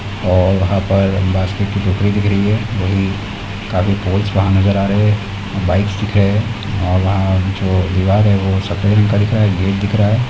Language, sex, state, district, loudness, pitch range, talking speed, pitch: Hindi, male, Uttar Pradesh, Deoria, -15 LUFS, 95-100 Hz, 220 wpm, 100 Hz